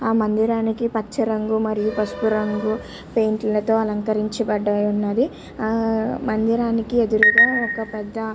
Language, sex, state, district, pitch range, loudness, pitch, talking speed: Telugu, female, Andhra Pradesh, Chittoor, 215-230 Hz, -20 LUFS, 220 Hz, 130 wpm